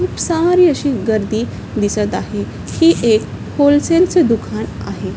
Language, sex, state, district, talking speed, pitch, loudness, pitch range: Marathi, female, Maharashtra, Chandrapur, 130 wpm, 285 Hz, -15 LUFS, 220-335 Hz